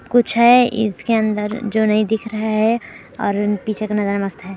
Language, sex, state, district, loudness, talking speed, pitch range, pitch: Hindi, female, Chhattisgarh, Kabirdham, -18 LUFS, 210 wpm, 210-225 Hz, 215 Hz